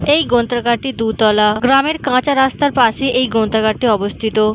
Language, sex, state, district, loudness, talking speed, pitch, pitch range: Bengali, female, West Bengal, Malda, -15 LUFS, 160 wpm, 240 Hz, 220-265 Hz